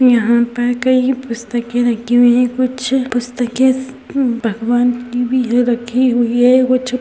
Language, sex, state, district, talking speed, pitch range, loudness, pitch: Hindi, female, Uttar Pradesh, Gorakhpur, 180 wpm, 240-255 Hz, -15 LUFS, 245 Hz